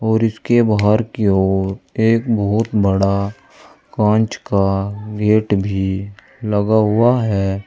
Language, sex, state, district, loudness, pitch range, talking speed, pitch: Hindi, male, Uttar Pradesh, Saharanpur, -17 LUFS, 100-110 Hz, 115 wpm, 105 Hz